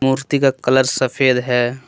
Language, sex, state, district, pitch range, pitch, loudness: Hindi, male, Jharkhand, Deoghar, 125-135 Hz, 130 Hz, -16 LUFS